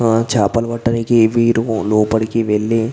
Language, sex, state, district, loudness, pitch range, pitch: Telugu, male, Andhra Pradesh, Visakhapatnam, -15 LUFS, 110-115 Hz, 115 Hz